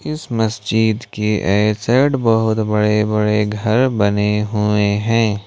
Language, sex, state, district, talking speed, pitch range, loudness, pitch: Hindi, male, Jharkhand, Ranchi, 130 wpm, 105-115 Hz, -17 LUFS, 105 Hz